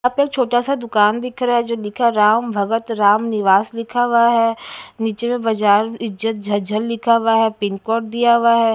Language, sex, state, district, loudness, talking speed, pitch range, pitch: Hindi, female, Haryana, Jhajjar, -17 LUFS, 205 wpm, 215-235 Hz, 230 Hz